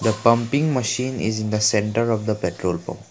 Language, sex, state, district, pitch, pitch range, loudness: English, male, Assam, Kamrup Metropolitan, 110 Hz, 105-115 Hz, -21 LUFS